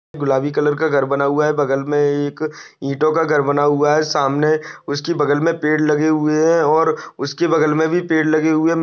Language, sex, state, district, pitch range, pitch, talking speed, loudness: Hindi, male, Jharkhand, Sahebganj, 145-155 Hz, 150 Hz, 215 wpm, -17 LUFS